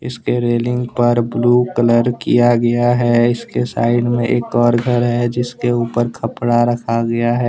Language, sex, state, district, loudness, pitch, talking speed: Hindi, male, Jharkhand, Deoghar, -16 LUFS, 120 Hz, 170 wpm